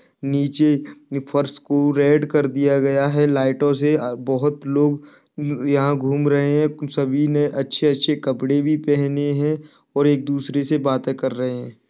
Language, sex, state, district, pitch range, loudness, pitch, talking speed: Hindi, male, Bihar, Kishanganj, 140-145 Hz, -20 LUFS, 145 Hz, 160 wpm